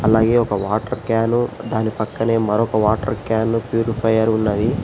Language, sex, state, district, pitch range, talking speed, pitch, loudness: Telugu, male, Telangana, Hyderabad, 110-115 Hz, 135 wpm, 110 Hz, -19 LUFS